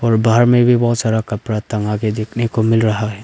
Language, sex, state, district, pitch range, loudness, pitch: Hindi, male, Arunachal Pradesh, Lower Dibang Valley, 110-120 Hz, -16 LUFS, 110 Hz